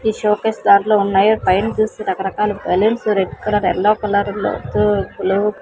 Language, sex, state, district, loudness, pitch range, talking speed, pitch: Telugu, female, Andhra Pradesh, Sri Satya Sai, -17 LUFS, 200-215 Hz, 140 wpm, 210 Hz